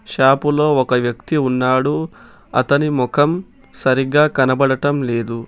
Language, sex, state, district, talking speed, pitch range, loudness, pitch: Telugu, male, Telangana, Hyderabad, 110 wpm, 130-145 Hz, -17 LUFS, 135 Hz